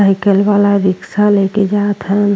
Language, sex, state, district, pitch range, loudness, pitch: Bhojpuri, female, Uttar Pradesh, Ghazipur, 195-205 Hz, -13 LUFS, 200 Hz